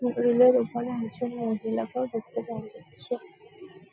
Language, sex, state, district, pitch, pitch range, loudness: Bengali, female, West Bengal, Jalpaiguri, 245 Hz, 230-250 Hz, -27 LUFS